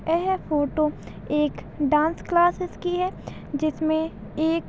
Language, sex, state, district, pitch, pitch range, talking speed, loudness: Hindi, female, Chhattisgarh, Balrampur, 315 Hz, 300-350 Hz, 115 wpm, -24 LUFS